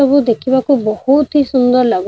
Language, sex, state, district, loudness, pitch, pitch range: Odia, female, Odisha, Nuapada, -13 LUFS, 260 Hz, 240-275 Hz